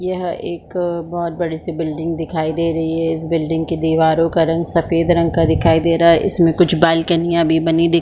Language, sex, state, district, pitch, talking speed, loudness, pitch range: Hindi, female, Chhattisgarh, Bilaspur, 165 Hz, 215 wpm, -17 LUFS, 165-170 Hz